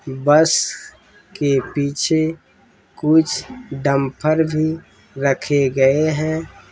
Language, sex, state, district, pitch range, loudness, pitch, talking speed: Hindi, male, Bihar, Darbhanga, 140-160 Hz, -18 LUFS, 150 Hz, 80 wpm